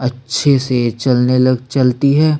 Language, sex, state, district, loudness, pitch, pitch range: Hindi, male, Chhattisgarh, Sukma, -14 LUFS, 130 Hz, 125-140 Hz